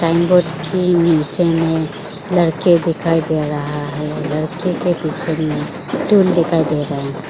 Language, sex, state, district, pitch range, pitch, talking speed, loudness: Hindi, female, Arunachal Pradesh, Lower Dibang Valley, 155-175 Hz, 165 Hz, 150 wpm, -16 LUFS